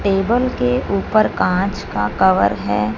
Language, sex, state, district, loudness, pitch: Hindi, female, Punjab, Fazilka, -17 LUFS, 190 Hz